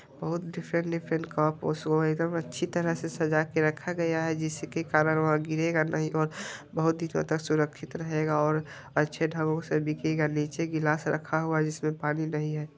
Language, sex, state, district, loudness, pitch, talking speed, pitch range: Hindi, male, Bihar, Vaishali, -29 LUFS, 155 Hz, 190 wpm, 155-165 Hz